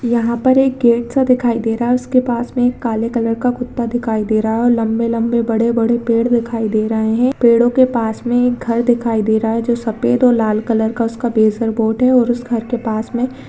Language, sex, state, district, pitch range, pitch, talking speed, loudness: Hindi, female, Uttarakhand, Tehri Garhwal, 225-245 Hz, 235 Hz, 250 wpm, -16 LUFS